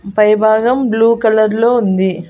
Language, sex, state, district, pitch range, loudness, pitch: Telugu, female, Andhra Pradesh, Annamaya, 210-230 Hz, -12 LUFS, 220 Hz